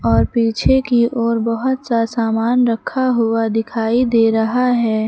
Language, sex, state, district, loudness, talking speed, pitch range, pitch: Hindi, female, Uttar Pradesh, Lucknow, -16 LUFS, 155 wpm, 225-245 Hz, 230 Hz